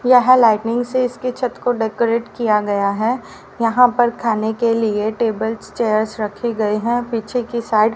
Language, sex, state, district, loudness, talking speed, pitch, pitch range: Hindi, female, Haryana, Rohtak, -18 LUFS, 175 wpm, 230 Hz, 215-245 Hz